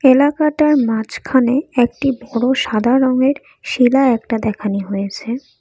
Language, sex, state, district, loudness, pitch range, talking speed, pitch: Bengali, female, Assam, Kamrup Metropolitan, -16 LUFS, 225-270 Hz, 105 wpm, 255 Hz